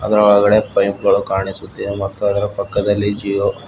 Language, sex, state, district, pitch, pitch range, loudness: Kannada, male, Karnataka, Bidar, 100 Hz, 100-105 Hz, -16 LUFS